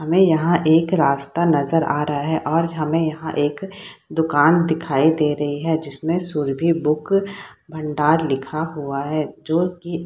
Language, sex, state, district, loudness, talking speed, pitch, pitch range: Hindi, female, Bihar, Saharsa, -19 LUFS, 165 wpm, 160 Hz, 150-170 Hz